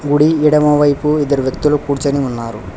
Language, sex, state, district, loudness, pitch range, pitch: Telugu, male, Telangana, Hyderabad, -14 LUFS, 135-150 Hz, 145 Hz